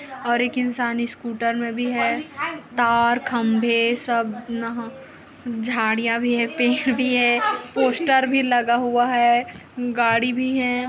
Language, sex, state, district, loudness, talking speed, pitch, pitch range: Hindi, female, Chhattisgarh, Kabirdham, -21 LUFS, 140 wpm, 240 Hz, 235-255 Hz